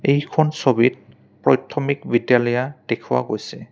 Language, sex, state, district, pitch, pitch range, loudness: Assamese, male, Assam, Kamrup Metropolitan, 130 Hz, 120-145 Hz, -20 LUFS